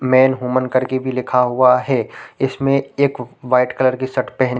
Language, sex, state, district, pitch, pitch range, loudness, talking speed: Hindi, male, Chhattisgarh, Raigarh, 130 Hz, 125-130 Hz, -17 LUFS, 170 wpm